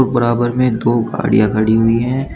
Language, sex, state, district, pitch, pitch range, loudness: Hindi, male, Uttar Pradesh, Shamli, 120 Hz, 115-125 Hz, -15 LUFS